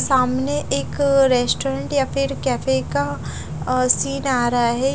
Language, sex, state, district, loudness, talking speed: Hindi, female, Bihar, Katihar, -20 LUFS, 145 wpm